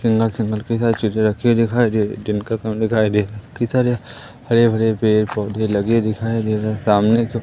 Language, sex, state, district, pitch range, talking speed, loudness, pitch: Hindi, male, Madhya Pradesh, Umaria, 105-115 Hz, 105 wpm, -18 LUFS, 110 Hz